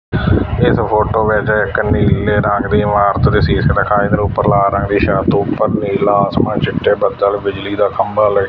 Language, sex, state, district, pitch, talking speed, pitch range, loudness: Punjabi, male, Punjab, Fazilka, 105 Hz, 190 wpm, 100-105 Hz, -14 LUFS